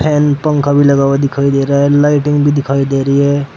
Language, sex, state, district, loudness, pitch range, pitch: Hindi, male, Uttar Pradesh, Saharanpur, -12 LUFS, 140-145 Hz, 140 Hz